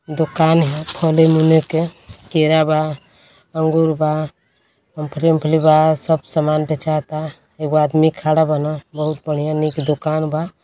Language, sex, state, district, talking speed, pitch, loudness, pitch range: Bhojpuri, male, Uttar Pradesh, Deoria, 135 wpm, 155 Hz, -17 LUFS, 150-160 Hz